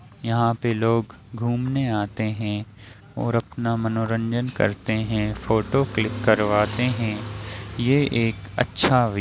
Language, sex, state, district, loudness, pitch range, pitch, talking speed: Hindi, male, Bihar, Samastipur, -23 LUFS, 105-120 Hz, 115 Hz, 130 wpm